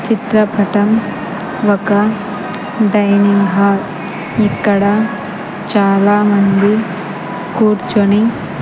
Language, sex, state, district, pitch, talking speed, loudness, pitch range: Telugu, female, Andhra Pradesh, Sri Satya Sai, 205 Hz, 50 wpm, -14 LUFS, 200-215 Hz